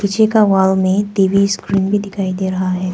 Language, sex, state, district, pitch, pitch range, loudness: Hindi, female, Arunachal Pradesh, Papum Pare, 195 Hz, 190-200 Hz, -15 LUFS